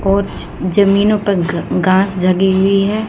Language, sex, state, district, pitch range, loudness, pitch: Hindi, female, Haryana, Jhajjar, 185-200 Hz, -14 LUFS, 195 Hz